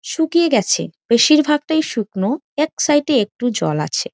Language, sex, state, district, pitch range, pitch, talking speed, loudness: Bengali, female, West Bengal, Jhargram, 225-315 Hz, 290 Hz, 175 wpm, -17 LUFS